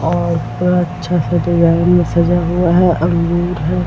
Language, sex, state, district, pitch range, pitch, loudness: Hindi, female, Bihar, Vaishali, 170-175 Hz, 175 Hz, -14 LUFS